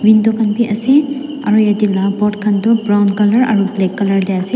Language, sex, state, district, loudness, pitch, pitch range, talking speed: Nagamese, female, Nagaland, Dimapur, -14 LUFS, 210 Hz, 200-225 Hz, 225 wpm